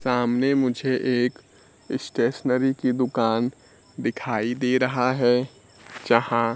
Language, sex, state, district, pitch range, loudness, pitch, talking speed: Hindi, male, Bihar, Kaimur, 120-130 Hz, -23 LUFS, 125 Hz, 100 wpm